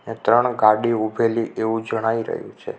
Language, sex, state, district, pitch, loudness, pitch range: Gujarati, male, Gujarat, Navsari, 115 Hz, -20 LUFS, 110-115 Hz